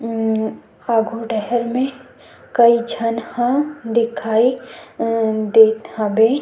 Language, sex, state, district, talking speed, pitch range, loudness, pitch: Chhattisgarhi, female, Chhattisgarh, Sukma, 95 wpm, 220-240 Hz, -18 LUFS, 230 Hz